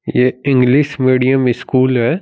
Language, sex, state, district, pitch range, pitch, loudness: Hindi, male, Bihar, Saran, 125-135 Hz, 130 Hz, -14 LUFS